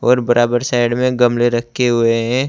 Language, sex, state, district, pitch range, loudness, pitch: Hindi, male, Uttar Pradesh, Saharanpur, 120-125 Hz, -15 LUFS, 120 Hz